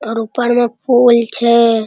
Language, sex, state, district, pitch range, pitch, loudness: Maithili, female, Bihar, Araria, 225-240 Hz, 235 Hz, -13 LUFS